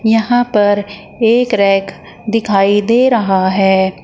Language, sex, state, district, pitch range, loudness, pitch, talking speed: Hindi, female, Uttar Pradesh, Shamli, 195-225 Hz, -13 LUFS, 205 Hz, 120 wpm